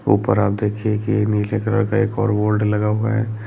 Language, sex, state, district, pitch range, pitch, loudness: Hindi, male, Bihar, Lakhisarai, 105-110 Hz, 105 Hz, -19 LUFS